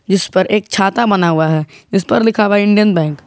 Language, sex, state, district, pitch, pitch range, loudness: Hindi, male, Jharkhand, Garhwa, 195 Hz, 165-210 Hz, -13 LUFS